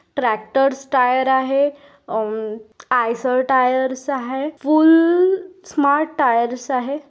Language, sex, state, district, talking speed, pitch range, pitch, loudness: Hindi, female, Maharashtra, Aurangabad, 95 wpm, 250-290 Hz, 265 Hz, -18 LUFS